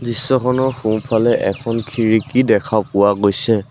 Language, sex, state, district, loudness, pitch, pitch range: Assamese, male, Assam, Sonitpur, -16 LUFS, 115 Hz, 110-125 Hz